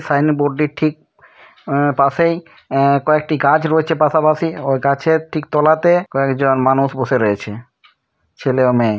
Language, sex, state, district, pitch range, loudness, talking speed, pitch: Bengali, male, West Bengal, Kolkata, 135-155 Hz, -16 LUFS, 135 wpm, 145 Hz